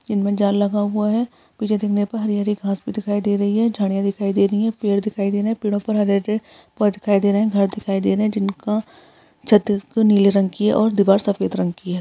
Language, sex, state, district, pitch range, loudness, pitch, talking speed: Hindi, female, Bihar, Madhepura, 200-215 Hz, -19 LUFS, 205 Hz, 255 wpm